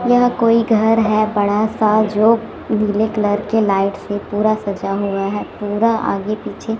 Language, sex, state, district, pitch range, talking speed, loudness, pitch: Hindi, female, Chhattisgarh, Raipur, 205-225 Hz, 170 wpm, -17 LUFS, 215 Hz